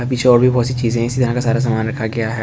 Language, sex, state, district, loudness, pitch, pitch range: Hindi, male, Delhi, New Delhi, -16 LUFS, 120 Hz, 115-125 Hz